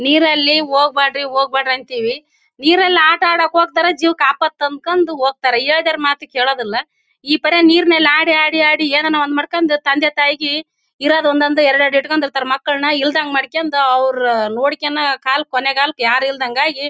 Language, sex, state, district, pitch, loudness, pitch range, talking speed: Kannada, female, Karnataka, Bellary, 290 Hz, -14 LUFS, 270-315 Hz, 140 wpm